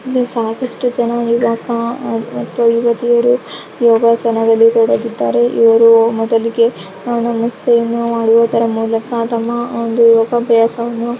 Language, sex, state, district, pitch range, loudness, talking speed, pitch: Kannada, female, Karnataka, Raichur, 230-235 Hz, -14 LUFS, 90 wpm, 230 Hz